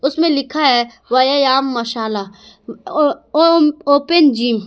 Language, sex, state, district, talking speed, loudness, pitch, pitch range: Hindi, female, Jharkhand, Garhwa, 130 wpm, -15 LUFS, 270 Hz, 235-305 Hz